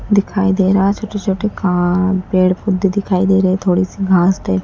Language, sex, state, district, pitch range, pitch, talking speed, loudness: Hindi, female, Madhya Pradesh, Dhar, 185-195 Hz, 190 Hz, 205 wpm, -15 LUFS